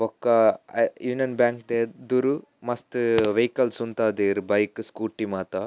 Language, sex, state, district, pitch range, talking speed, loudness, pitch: Tulu, male, Karnataka, Dakshina Kannada, 110-120 Hz, 125 wpm, -24 LUFS, 115 Hz